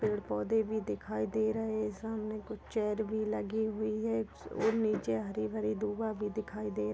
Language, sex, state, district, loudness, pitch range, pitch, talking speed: Hindi, male, Chhattisgarh, Raigarh, -35 LUFS, 195-220 Hz, 215 Hz, 190 wpm